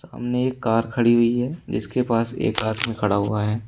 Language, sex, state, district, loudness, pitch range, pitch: Hindi, male, Uttar Pradesh, Shamli, -22 LUFS, 110-120 Hz, 115 Hz